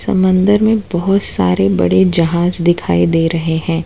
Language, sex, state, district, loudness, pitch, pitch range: Hindi, female, Gujarat, Valsad, -13 LUFS, 170 Hz, 160-185 Hz